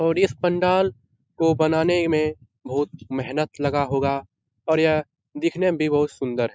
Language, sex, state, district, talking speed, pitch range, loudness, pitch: Hindi, male, Bihar, Lakhisarai, 165 wpm, 130-165 Hz, -22 LUFS, 150 Hz